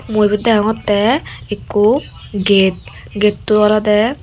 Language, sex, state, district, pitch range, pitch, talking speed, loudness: Chakma, female, Tripura, Dhalai, 205-215 Hz, 210 Hz, 100 wpm, -14 LUFS